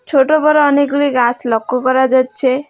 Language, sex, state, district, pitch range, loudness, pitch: Bengali, female, West Bengal, Alipurduar, 255-285 Hz, -13 LUFS, 260 Hz